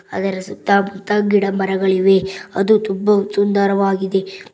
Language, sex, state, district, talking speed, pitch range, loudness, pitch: Kannada, female, Karnataka, Bangalore, 105 wpm, 195-200 Hz, -17 LUFS, 195 Hz